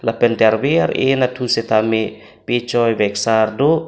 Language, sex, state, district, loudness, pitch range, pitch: Karbi, male, Assam, Karbi Anglong, -17 LUFS, 110-125 Hz, 115 Hz